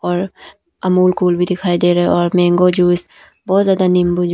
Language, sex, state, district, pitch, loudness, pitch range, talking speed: Hindi, female, Arunachal Pradesh, Papum Pare, 180 Hz, -14 LUFS, 175-185 Hz, 220 wpm